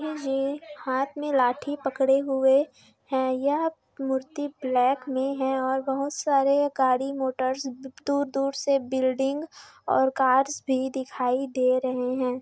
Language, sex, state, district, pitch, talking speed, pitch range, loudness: Hindi, female, Chhattisgarh, Raigarh, 270 Hz, 135 wpm, 260-280 Hz, -26 LUFS